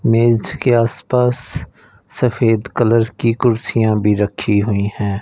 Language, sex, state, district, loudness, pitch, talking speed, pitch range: Hindi, male, Punjab, Fazilka, -16 LUFS, 115 Hz, 125 wpm, 105-120 Hz